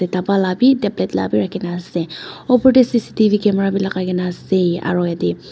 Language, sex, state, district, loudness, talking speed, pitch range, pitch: Nagamese, female, Nagaland, Dimapur, -17 LUFS, 205 wpm, 175-205 Hz, 185 Hz